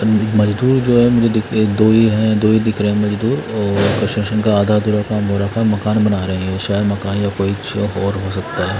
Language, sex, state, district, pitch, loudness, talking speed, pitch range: Hindi, male, Delhi, New Delhi, 105 Hz, -16 LUFS, 185 wpm, 100-110 Hz